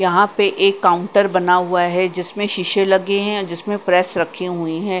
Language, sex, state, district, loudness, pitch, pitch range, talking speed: Hindi, female, Punjab, Kapurthala, -17 LUFS, 185 Hz, 180-205 Hz, 190 wpm